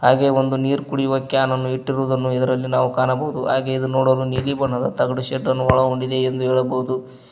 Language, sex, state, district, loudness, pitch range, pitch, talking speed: Kannada, male, Karnataka, Koppal, -20 LUFS, 130-135 Hz, 130 Hz, 170 wpm